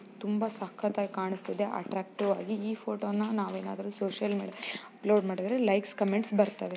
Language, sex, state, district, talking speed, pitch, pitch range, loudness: Kannada, female, Karnataka, Chamarajanagar, 135 wpm, 205 Hz, 195-210 Hz, -32 LUFS